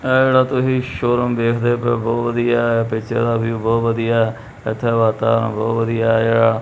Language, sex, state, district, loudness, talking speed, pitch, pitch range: Punjabi, male, Punjab, Kapurthala, -18 LUFS, 190 wpm, 115 Hz, 115-120 Hz